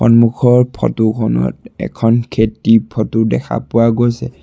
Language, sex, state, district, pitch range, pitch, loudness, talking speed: Assamese, male, Assam, Sonitpur, 110-120 Hz, 115 Hz, -14 LUFS, 110 wpm